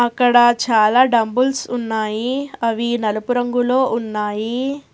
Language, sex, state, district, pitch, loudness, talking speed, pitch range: Telugu, female, Telangana, Hyderabad, 240 Hz, -17 LUFS, 95 wpm, 225-250 Hz